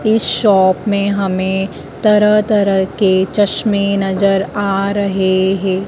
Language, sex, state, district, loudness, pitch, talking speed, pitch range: Hindi, female, Madhya Pradesh, Dhar, -14 LUFS, 195 Hz, 120 wpm, 190-205 Hz